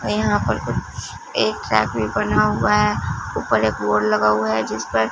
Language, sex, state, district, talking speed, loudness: Hindi, female, Punjab, Fazilka, 210 wpm, -20 LUFS